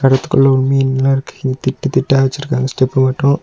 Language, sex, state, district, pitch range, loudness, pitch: Tamil, male, Tamil Nadu, Nilgiris, 130-135 Hz, -14 LUFS, 135 Hz